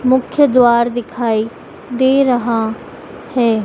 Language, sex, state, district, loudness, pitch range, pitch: Hindi, female, Madhya Pradesh, Dhar, -15 LUFS, 230-260 Hz, 245 Hz